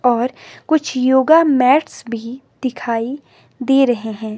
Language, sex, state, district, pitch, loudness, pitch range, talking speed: Hindi, female, Himachal Pradesh, Shimla, 255 Hz, -16 LUFS, 235-275 Hz, 125 wpm